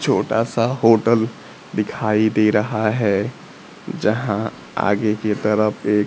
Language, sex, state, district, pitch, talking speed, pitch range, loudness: Hindi, female, Bihar, Kaimur, 110 Hz, 120 wpm, 105-115 Hz, -19 LUFS